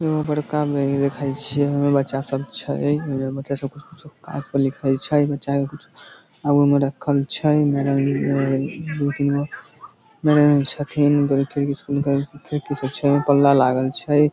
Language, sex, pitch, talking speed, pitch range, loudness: Maithili, male, 140 Hz, 155 wpm, 140-145 Hz, -21 LUFS